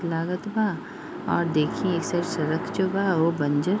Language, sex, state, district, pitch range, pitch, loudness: Bhojpuri, female, Bihar, East Champaran, 165-190 Hz, 175 Hz, -25 LUFS